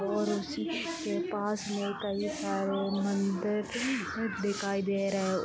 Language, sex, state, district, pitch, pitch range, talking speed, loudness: Hindi, female, Jharkhand, Sahebganj, 200 Hz, 195-210 Hz, 130 wpm, -32 LUFS